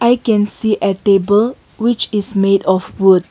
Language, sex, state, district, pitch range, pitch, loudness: English, female, Nagaland, Kohima, 195-220 Hz, 205 Hz, -14 LUFS